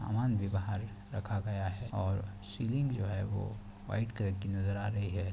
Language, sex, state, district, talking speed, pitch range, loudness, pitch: Hindi, male, Chhattisgarh, Bastar, 205 wpm, 100-110 Hz, -36 LUFS, 100 Hz